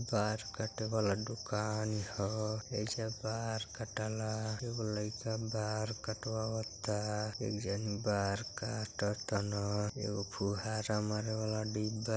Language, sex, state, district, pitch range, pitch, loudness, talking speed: Bhojpuri, male, Uttar Pradesh, Gorakhpur, 105-110 Hz, 110 Hz, -37 LUFS, 110 wpm